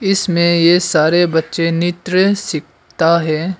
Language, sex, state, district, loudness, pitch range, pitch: Hindi, male, Arunachal Pradesh, Longding, -14 LUFS, 165-180 Hz, 170 Hz